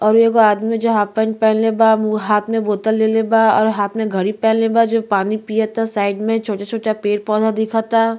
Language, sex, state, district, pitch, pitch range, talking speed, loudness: Bhojpuri, female, Uttar Pradesh, Ghazipur, 220 Hz, 215-225 Hz, 205 wpm, -16 LUFS